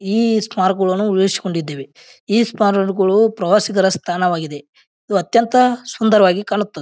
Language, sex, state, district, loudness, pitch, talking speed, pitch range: Kannada, male, Karnataka, Bijapur, -16 LUFS, 195 Hz, 95 wpm, 185-220 Hz